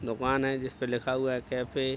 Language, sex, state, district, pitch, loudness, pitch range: Hindi, male, Bihar, Araria, 130 Hz, -30 LUFS, 125-130 Hz